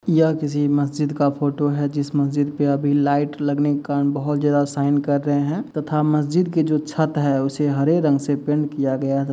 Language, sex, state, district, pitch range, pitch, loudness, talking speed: Hindi, male, Uttar Pradesh, Muzaffarnagar, 145-150 Hz, 145 Hz, -20 LUFS, 210 wpm